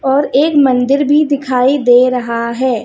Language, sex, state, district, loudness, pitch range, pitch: Hindi, female, Chhattisgarh, Raipur, -12 LUFS, 250-285 Hz, 260 Hz